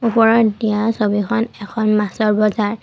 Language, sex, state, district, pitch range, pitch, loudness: Assamese, female, Assam, Kamrup Metropolitan, 210-225 Hz, 215 Hz, -17 LUFS